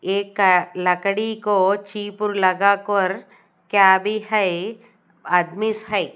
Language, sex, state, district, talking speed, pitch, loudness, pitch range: Hindi, female, Odisha, Nuapada, 105 wpm, 200 Hz, -19 LUFS, 190-210 Hz